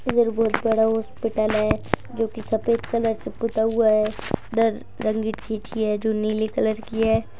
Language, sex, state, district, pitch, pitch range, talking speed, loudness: Hindi, female, Bihar, Gaya, 220 Hz, 215-225 Hz, 155 wpm, -23 LUFS